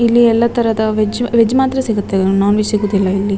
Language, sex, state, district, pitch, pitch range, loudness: Kannada, female, Karnataka, Dakshina Kannada, 215 Hz, 200-235 Hz, -14 LUFS